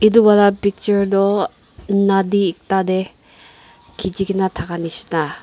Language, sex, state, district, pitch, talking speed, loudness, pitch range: Nagamese, female, Nagaland, Dimapur, 195 Hz, 130 wpm, -17 LUFS, 190-200 Hz